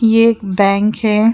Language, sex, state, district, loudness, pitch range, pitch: Hindi, female, Uttar Pradesh, Jyotiba Phule Nagar, -14 LUFS, 200-225 Hz, 215 Hz